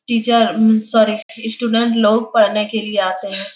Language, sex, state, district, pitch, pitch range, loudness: Hindi, female, Bihar, Jahanabad, 220 Hz, 210-230 Hz, -16 LUFS